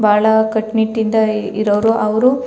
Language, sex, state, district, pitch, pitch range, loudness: Kannada, female, Karnataka, Chamarajanagar, 220 Hz, 215-225 Hz, -15 LUFS